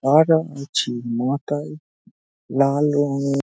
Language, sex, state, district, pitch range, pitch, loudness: Bengali, male, West Bengal, Dakshin Dinajpur, 140-150 Hz, 140 Hz, -21 LUFS